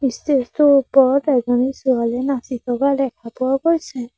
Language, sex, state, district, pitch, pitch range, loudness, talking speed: Assamese, female, Assam, Sonitpur, 265 Hz, 245-275 Hz, -18 LUFS, 145 wpm